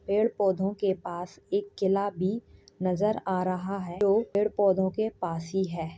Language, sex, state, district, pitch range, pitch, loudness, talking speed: Hindi, female, Uttar Pradesh, Jyotiba Phule Nagar, 185-210 Hz, 195 Hz, -28 LUFS, 180 wpm